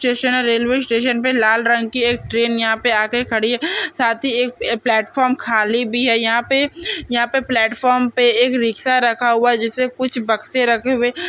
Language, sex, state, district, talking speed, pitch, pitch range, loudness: Hindi, female, Maharashtra, Solapur, 205 wpm, 240 Hz, 230-255 Hz, -16 LUFS